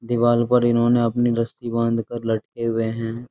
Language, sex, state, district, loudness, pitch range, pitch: Hindi, male, Uttar Pradesh, Jyotiba Phule Nagar, -21 LUFS, 115-120 Hz, 115 Hz